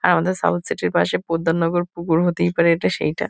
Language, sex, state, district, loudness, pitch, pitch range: Bengali, female, West Bengal, Kolkata, -20 LUFS, 170 Hz, 165-175 Hz